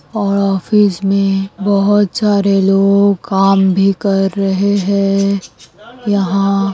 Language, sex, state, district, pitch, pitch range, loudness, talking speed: Hindi, female, Bihar, Madhepura, 195 Hz, 195-200 Hz, -13 LUFS, 115 wpm